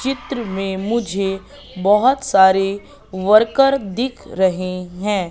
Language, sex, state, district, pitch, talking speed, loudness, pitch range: Hindi, female, Madhya Pradesh, Katni, 200 Hz, 100 wpm, -18 LUFS, 190-240 Hz